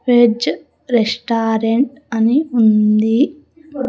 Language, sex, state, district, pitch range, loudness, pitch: Telugu, female, Andhra Pradesh, Sri Satya Sai, 225-265 Hz, -15 LUFS, 240 Hz